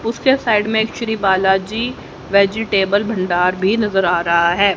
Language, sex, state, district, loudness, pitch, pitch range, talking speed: Hindi, female, Haryana, Rohtak, -16 LUFS, 200 Hz, 190-220 Hz, 165 wpm